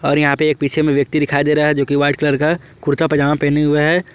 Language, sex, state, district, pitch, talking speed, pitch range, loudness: Hindi, male, Jharkhand, Palamu, 150 Hz, 305 wpm, 145-155 Hz, -15 LUFS